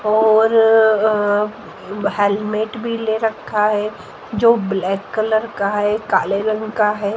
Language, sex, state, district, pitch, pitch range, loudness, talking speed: Hindi, female, Haryana, Jhajjar, 215 Hz, 205-220 Hz, -17 LUFS, 135 wpm